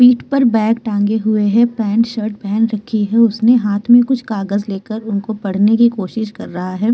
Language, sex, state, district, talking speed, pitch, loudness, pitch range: Hindi, female, Uttar Pradesh, Muzaffarnagar, 225 wpm, 220 Hz, -15 LUFS, 205-230 Hz